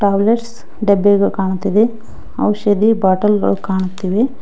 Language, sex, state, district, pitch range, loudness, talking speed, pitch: Kannada, female, Karnataka, Koppal, 190-220 Hz, -15 LUFS, 95 wpm, 205 Hz